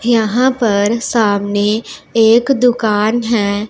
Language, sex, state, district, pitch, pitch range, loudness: Hindi, female, Punjab, Pathankot, 225 Hz, 210-235 Hz, -14 LUFS